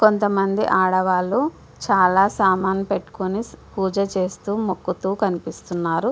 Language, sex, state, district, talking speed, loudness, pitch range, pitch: Telugu, female, Andhra Pradesh, Visakhapatnam, 110 wpm, -21 LUFS, 185-205 Hz, 195 Hz